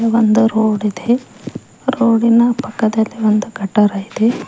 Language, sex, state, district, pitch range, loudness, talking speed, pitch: Kannada, female, Karnataka, Koppal, 210-235 Hz, -15 LUFS, 120 wpm, 225 Hz